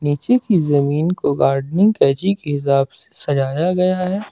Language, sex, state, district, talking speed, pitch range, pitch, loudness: Hindi, male, Jharkhand, Ranchi, 165 wpm, 140-190 Hz, 160 Hz, -17 LUFS